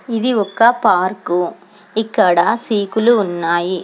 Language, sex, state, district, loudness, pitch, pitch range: Telugu, female, Telangana, Hyderabad, -16 LUFS, 205 Hz, 180-225 Hz